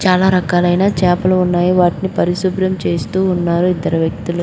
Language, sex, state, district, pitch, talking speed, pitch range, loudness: Telugu, female, Andhra Pradesh, Krishna, 180 Hz, 135 wpm, 175-185 Hz, -15 LUFS